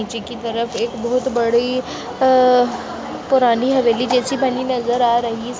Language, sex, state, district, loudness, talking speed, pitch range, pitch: Hindi, female, Uttar Pradesh, Jalaun, -18 LUFS, 160 wpm, 235-255 Hz, 245 Hz